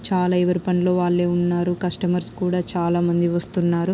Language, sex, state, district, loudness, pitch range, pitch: Telugu, female, Andhra Pradesh, Krishna, -21 LUFS, 175-180 Hz, 180 Hz